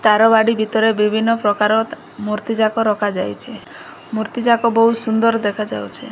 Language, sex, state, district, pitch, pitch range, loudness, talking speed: Odia, female, Odisha, Malkangiri, 220 Hz, 210-230 Hz, -17 LUFS, 110 wpm